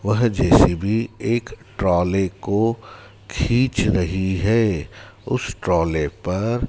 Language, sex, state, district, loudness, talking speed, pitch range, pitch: Hindi, male, Madhya Pradesh, Dhar, -20 LUFS, 100 wpm, 95-115 Hz, 105 Hz